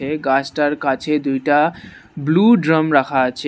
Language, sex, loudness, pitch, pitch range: Bengali, male, -17 LUFS, 145 Hz, 135-155 Hz